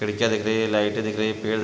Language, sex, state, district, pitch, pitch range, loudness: Hindi, male, Chhattisgarh, Raigarh, 110 Hz, 105-110 Hz, -23 LUFS